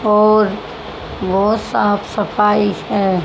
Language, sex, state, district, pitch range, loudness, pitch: Hindi, male, Haryana, Rohtak, 200-210 Hz, -15 LUFS, 205 Hz